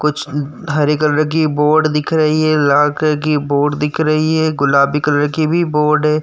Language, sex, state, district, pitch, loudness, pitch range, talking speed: Hindi, male, Uttar Pradesh, Jyotiba Phule Nagar, 150 Hz, -14 LUFS, 145-155 Hz, 200 wpm